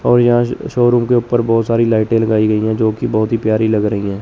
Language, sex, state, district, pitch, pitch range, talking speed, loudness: Hindi, male, Chandigarh, Chandigarh, 115 Hz, 110-120 Hz, 285 wpm, -14 LUFS